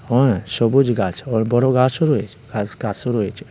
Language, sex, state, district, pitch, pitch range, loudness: Bengali, male, Tripura, West Tripura, 120 Hz, 110-130 Hz, -19 LUFS